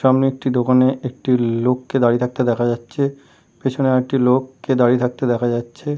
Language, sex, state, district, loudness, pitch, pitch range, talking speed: Bengali, male, West Bengal, Kolkata, -18 LUFS, 125 Hz, 120-130 Hz, 180 wpm